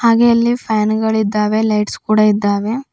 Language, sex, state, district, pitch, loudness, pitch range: Kannada, female, Karnataka, Bidar, 215 Hz, -15 LUFS, 210-230 Hz